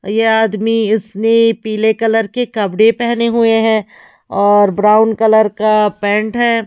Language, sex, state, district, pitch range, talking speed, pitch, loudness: Hindi, female, Haryana, Charkhi Dadri, 210-225 Hz, 145 wpm, 220 Hz, -13 LUFS